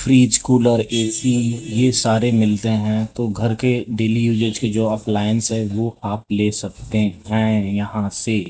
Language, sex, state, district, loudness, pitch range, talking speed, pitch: Hindi, male, Rajasthan, Jaipur, -19 LUFS, 105-115 Hz, 170 wpm, 110 Hz